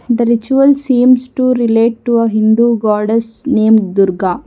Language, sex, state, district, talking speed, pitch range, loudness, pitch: English, female, Karnataka, Bangalore, 145 wpm, 220-250 Hz, -12 LUFS, 230 Hz